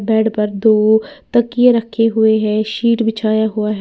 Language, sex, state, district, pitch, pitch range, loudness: Hindi, female, Uttar Pradesh, Lalitpur, 220 Hz, 215-230 Hz, -15 LUFS